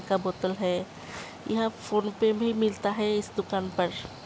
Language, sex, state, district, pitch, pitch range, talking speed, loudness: Hindi, female, Uttar Pradesh, Hamirpur, 205 Hz, 185-220 Hz, 185 wpm, -29 LUFS